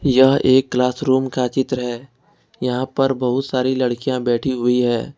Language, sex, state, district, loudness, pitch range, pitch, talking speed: Hindi, male, Jharkhand, Ranchi, -18 LUFS, 125-130 Hz, 130 Hz, 175 wpm